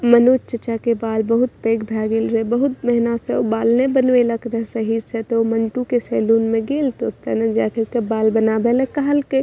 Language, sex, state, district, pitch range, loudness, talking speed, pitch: Maithili, female, Bihar, Madhepura, 225-245 Hz, -19 LUFS, 225 wpm, 230 Hz